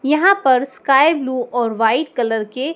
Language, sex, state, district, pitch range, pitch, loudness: Hindi, male, Madhya Pradesh, Dhar, 235-290 Hz, 260 Hz, -16 LUFS